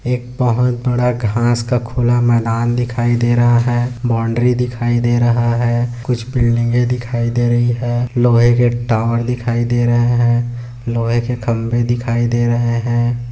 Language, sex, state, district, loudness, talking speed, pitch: Hindi, male, Maharashtra, Aurangabad, -16 LUFS, 160 wpm, 120 Hz